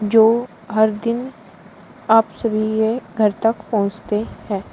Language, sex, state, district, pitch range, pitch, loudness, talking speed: Hindi, female, Uttar Pradesh, Shamli, 210-225 Hz, 220 Hz, -19 LUFS, 125 wpm